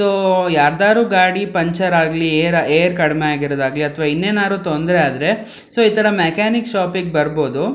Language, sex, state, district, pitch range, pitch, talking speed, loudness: Kannada, male, Karnataka, Mysore, 155-200 Hz, 175 Hz, 145 wpm, -16 LUFS